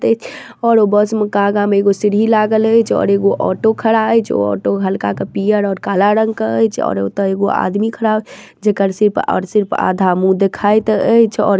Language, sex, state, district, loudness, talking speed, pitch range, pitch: Maithili, female, Bihar, Darbhanga, -14 LUFS, 225 wpm, 195-220 Hz, 205 Hz